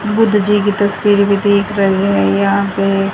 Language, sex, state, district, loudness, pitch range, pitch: Hindi, female, Haryana, Rohtak, -13 LUFS, 195-205 Hz, 200 Hz